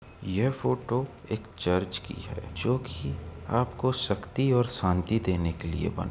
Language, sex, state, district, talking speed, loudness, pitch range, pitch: Hindi, male, Uttar Pradesh, Etah, 155 wpm, -29 LUFS, 90-125 Hz, 105 Hz